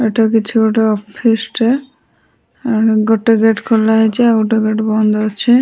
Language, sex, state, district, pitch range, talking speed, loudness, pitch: Odia, female, Odisha, Sambalpur, 220-230 Hz, 130 wpm, -13 LUFS, 225 Hz